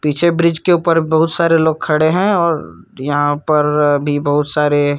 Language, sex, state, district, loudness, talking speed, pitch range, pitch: Hindi, male, Chhattisgarh, Korba, -14 LUFS, 195 wpm, 145-165 Hz, 155 Hz